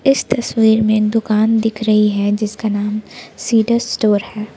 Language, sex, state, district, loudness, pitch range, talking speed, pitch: Hindi, female, Jharkhand, Palamu, -16 LUFS, 210-225 Hz, 155 wpm, 220 Hz